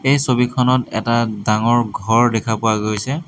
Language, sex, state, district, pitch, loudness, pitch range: Assamese, male, Assam, Hailakandi, 115 Hz, -17 LUFS, 110-125 Hz